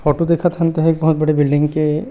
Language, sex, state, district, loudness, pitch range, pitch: Chhattisgarhi, male, Chhattisgarh, Rajnandgaon, -16 LUFS, 150-165 Hz, 155 Hz